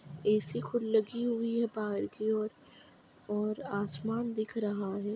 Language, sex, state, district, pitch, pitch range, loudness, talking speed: Hindi, female, Uttar Pradesh, Budaun, 215 Hz, 205-230 Hz, -33 LUFS, 150 wpm